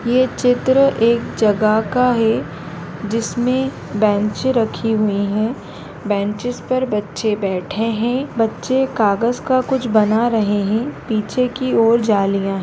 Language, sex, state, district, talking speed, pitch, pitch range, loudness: Hindi, female, Rajasthan, Nagaur, 140 wpm, 225 Hz, 205-250 Hz, -18 LUFS